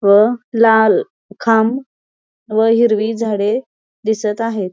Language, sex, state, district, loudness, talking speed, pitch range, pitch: Marathi, female, Maharashtra, Pune, -15 LUFS, 100 wpm, 215-230 Hz, 225 Hz